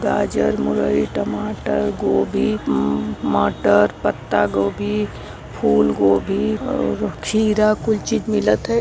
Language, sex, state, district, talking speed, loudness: Hindi, female, Uttar Pradesh, Varanasi, 90 wpm, -19 LUFS